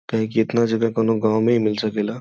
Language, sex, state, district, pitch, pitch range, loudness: Bhojpuri, male, Uttar Pradesh, Gorakhpur, 115 Hz, 110-115 Hz, -20 LUFS